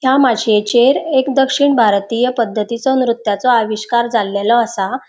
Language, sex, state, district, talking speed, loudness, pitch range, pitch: Konkani, female, Goa, North and South Goa, 120 wpm, -14 LUFS, 215-260 Hz, 235 Hz